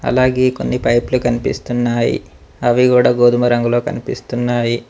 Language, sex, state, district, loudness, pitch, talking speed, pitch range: Telugu, male, Telangana, Mahabubabad, -16 LUFS, 120 Hz, 110 wpm, 120-125 Hz